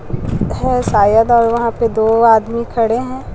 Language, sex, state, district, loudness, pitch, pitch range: Hindi, female, Chhattisgarh, Raipur, -14 LUFS, 230 Hz, 225-235 Hz